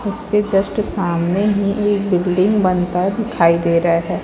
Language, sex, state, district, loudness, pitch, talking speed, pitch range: Hindi, female, Chhattisgarh, Raipur, -17 LUFS, 190 Hz, 155 wpm, 175-205 Hz